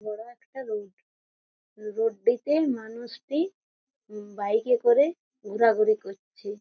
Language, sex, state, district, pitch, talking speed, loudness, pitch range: Bengali, female, West Bengal, Jhargram, 230 Hz, 120 wpm, -26 LUFS, 210-280 Hz